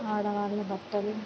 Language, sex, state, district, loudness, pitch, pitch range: Telugu, female, Andhra Pradesh, Krishna, -32 LUFS, 205 Hz, 205-210 Hz